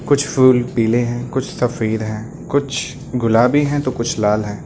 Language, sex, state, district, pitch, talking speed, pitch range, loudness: Hindi, male, Uttar Pradesh, Lucknow, 125 Hz, 180 wpm, 115-135 Hz, -17 LUFS